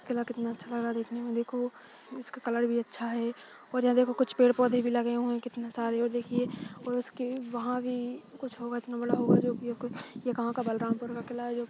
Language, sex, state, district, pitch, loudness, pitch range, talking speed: Hindi, female, Chhattisgarh, Balrampur, 240 Hz, -31 LUFS, 235-245 Hz, 235 wpm